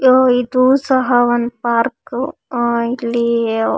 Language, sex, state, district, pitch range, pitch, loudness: Kannada, female, Karnataka, Shimoga, 235-255 Hz, 240 Hz, -16 LUFS